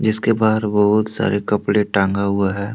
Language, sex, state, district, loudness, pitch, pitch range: Hindi, male, Jharkhand, Deoghar, -18 LUFS, 105 Hz, 100-110 Hz